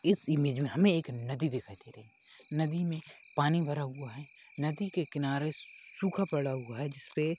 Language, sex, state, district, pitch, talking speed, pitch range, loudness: Hindi, male, Maharashtra, Chandrapur, 145 Hz, 195 wpm, 135-160 Hz, -33 LUFS